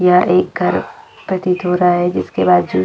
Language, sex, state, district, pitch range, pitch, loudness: Hindi, female, Chhattisgarh, Jashpur, 155-180 Hz, 180 Hz, -15 LUFS